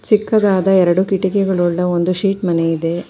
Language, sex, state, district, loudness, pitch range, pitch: Kannada, female, Karnataka, Bangalore, -15 LUFS, 175-195 Hz, 185 Hz